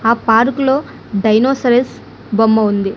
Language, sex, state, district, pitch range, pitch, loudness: Telugu, female, Andhra Pradesh, Annamaya, 220-260 Hz, 225 Hz, -14 LUFS